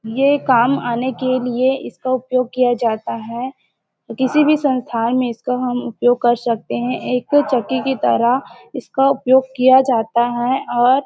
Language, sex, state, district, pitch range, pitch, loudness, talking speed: Hindi, female, Chhattisgarh, Bilaspur, 240-260 Hz, 250 Hz, -17 LUFS, 165 wpm